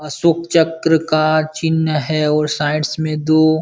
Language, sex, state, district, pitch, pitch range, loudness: Hindi, male, Bihar, Supaul, 155 Hz, 150-160 Hz, -16 LUFS